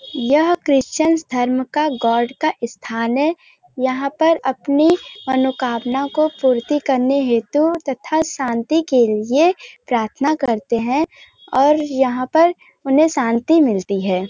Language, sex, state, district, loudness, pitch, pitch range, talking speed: Hindi, female, Uttar Pradesh, Varanasi, -17 LUFS, 270 Hz, 245-310 Hz, 135 wpm